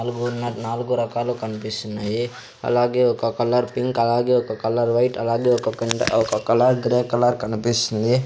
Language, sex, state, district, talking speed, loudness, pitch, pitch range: Telugu, male, Andhra Pradesh, Sri Satya Sai, 145 wpm, -21 LUFS, 120 Hz, 115-120 Hz